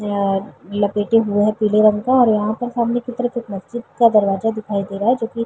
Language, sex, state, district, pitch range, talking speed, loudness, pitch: Hindi, female, Bihar, Vaishali, 205-235 Hz, 265 wpm, -18 LUFS, 215 Hz